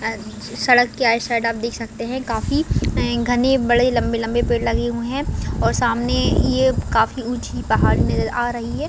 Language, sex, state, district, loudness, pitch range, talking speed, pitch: Hindi, female, Chhattisgarh, Raigarh, -19 LUFS, 235-250 Hz, 180 wpm, 240 Hz